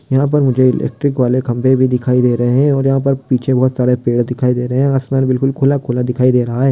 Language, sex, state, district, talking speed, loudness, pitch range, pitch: Hindi, male, Bihar, Kishanganj, 265 wpm, -14 LUFS, 125-135 Hz, 130 Hz